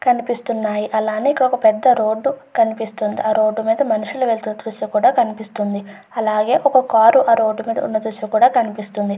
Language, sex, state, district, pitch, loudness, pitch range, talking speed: Telugu, female, Andhra Pradesh, Chittoor, 220 Hz, -17 LUFS, 215-245 Hz, 170 wpm